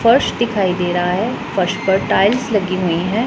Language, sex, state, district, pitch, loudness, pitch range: Hindi, female, Punjab, Pathankot, 195 Hz, -17 LUFS, 185-230 Hz